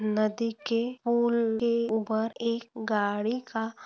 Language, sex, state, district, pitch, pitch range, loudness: Hindi, female, Maharashtra, Pune, 230 Hz, 220-235 Hz, -28 LUFS